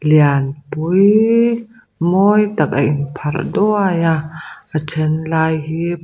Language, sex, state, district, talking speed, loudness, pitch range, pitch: Mizo, female, Mizoram, Aizawl, 130 wpm, -16 LUFS, 155-200 Hz, 160 Hz